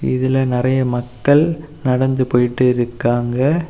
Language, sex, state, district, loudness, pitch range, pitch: Tamil, male, Tamil Nadu, Kanyakumari, -17 LUFS, 120-135 Hz, 125 Hz